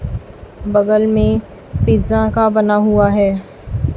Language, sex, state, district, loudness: Hindi, female, Chhattisgarh, Raipur, -15 LUFS